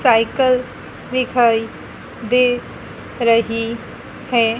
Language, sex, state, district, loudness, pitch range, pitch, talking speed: Hindi, female, Madhya Pradesh, Dhar, -17 LUFS, 230-250 Hz, 235 Hz, 65 wpm